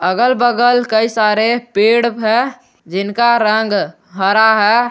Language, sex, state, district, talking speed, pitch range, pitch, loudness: Hindi, male, Jharkhand, Garhwa, 120 wpm, 210-240 Hz, 220 Hz, -13 LUFS